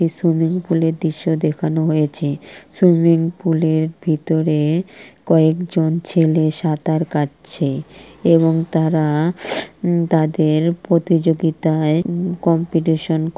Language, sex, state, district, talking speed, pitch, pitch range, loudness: Bengali, male, West Bengal, Purulia, 95 wpm, 165 Hz, 160-170 Hz, -17 LUFS